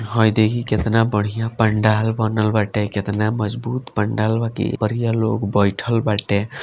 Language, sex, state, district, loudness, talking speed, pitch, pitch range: Bhojpuri, male, Bihar, Gopalganj, -19 LUFS, 145 wpm, 110 Hz, 105-115 Hz